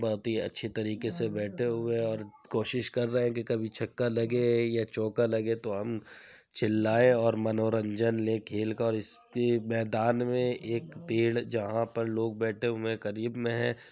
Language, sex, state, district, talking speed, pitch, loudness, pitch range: Hindi, male, Uttar Pradesh, Jyotiba Phule Nagar, 175 wpm, 115 Hz, -30 LUFS, 110-120 Hz